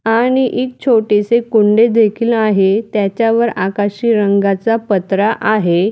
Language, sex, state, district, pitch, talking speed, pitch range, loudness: Marathi, female, Maharashtra, Dhule, 215 Hz, 120 wpm, 200-230 Hz, -14 LUFS